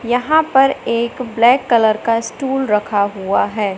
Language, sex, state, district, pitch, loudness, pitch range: Hindi, male, Madhya Pradesh, Katni, 235 Hz, -16 LUFS, 215-260 Hz